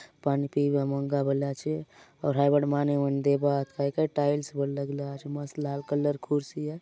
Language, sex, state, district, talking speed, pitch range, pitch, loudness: Halbi, male, Chhattisgarh, Bastar, 210 wpm, 140-145 Hz, 145 Hz, -28 LUFS